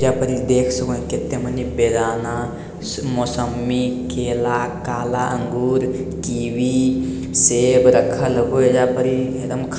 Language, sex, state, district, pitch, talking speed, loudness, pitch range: Maithili, male, Bihar, Lakhisarai, 125 Hz, 140 wpm, -19 LUFS, 120-130 Hz